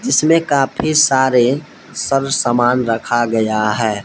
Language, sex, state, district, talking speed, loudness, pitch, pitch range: Hindi, male, Jharkhand, Palamu, 120 wpm, -15 LUFS, 125 Hz, 115-140 Hz